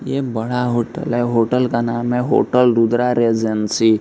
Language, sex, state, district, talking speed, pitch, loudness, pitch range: Hindi, male, Bihar, East Champaran, 165 wpm, 120 Hz, -17 LUFS, 115-125 Hz